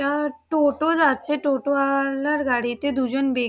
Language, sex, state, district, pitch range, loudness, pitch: Bengali, female, West Bengal, Dakshin Dinajpur, 270-295 Hz, -22 LUFS, 280 Hz